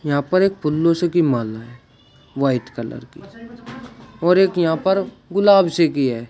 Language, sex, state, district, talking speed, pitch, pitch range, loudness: Hindi, male, Uttar Pradesh, Shamli, 180 wpm, 160 Hz, 130-185 Hz, -18 LUFS